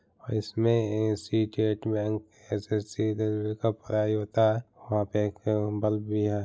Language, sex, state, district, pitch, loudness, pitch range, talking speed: Hindi, male, Bihar, Muzaffarpur, 110 Hz, -29 LUFS, 105-110 Hz, 140 wpm